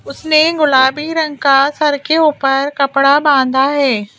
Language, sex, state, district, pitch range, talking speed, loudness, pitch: Hindi, female, Madhya Pradesh, Bhopal, 270-305 Hz, 145 wpm, -12 LUFS, 285 Hz